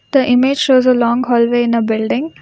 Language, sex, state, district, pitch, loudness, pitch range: English, female, Karnataka, Bangalore, 250 Hz, -13 LUFS, 235-265 Hz